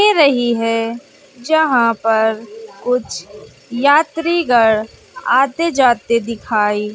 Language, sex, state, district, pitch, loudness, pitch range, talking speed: Hindi, female, Bihar, West Champaran, 235 Hz, -15 LUFS, 220-290 Hz, 85 wpm